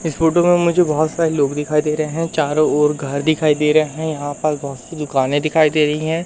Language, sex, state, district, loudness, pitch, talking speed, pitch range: Hindi, male, Madhya Pradesh, Umaria, -17 LUFS, 155 Hz, 260 wpm, 150-160 Hz